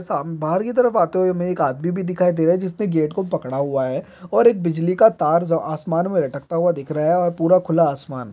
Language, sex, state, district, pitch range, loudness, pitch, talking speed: Hindi, male, Bihar, East Champaran, 160-185 Hz, -19 LUFS, 170 Hz, 265 wpm